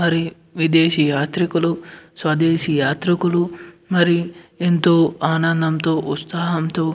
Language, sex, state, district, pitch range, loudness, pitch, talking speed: Telugu, male, Andhra Pradesh, Anantapur, 160-170 Hz, -19 LUFS, 165 Hz, 85 wpm